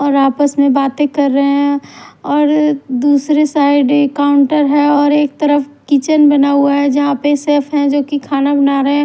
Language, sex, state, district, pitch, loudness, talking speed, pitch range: Hindi, female, Himachal Pradesh, Shimla, 285 Hz, -12 LUFS, 200 wpm, 280-290 Hz